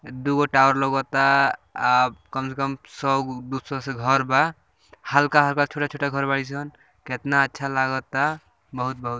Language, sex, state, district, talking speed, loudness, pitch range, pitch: Bhojpuri, male, Bihar, Gopalganj, 155 wpm, -22 LUFS, 130-140 Hz, 135 Hz